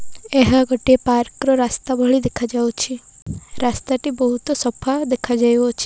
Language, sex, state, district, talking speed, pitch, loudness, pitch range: Odia, female, Odisha, Malkangiri, 135 wpm, 255 Hz, -18 LUFS, 240-260 Hz